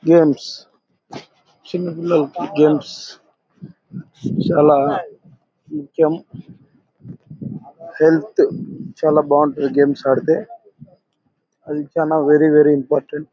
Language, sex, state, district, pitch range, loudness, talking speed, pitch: Telugu, male, Andhra Pradesh, Anantapur, 150-170 Hz, -17 LUFS, 70 wpm, 155 Hz